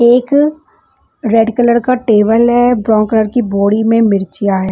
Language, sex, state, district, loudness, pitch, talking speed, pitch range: Hindi, female, Bihar, West Champaran, -12 LUFS, 225 Hz, 180 wpm, 215-245 Hz